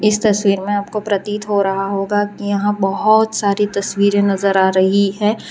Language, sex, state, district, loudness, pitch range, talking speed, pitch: Hindi, female, Gujarat, Valsad, -16 LUFS, 195-210 Hz, 185 wpm, 200 Hz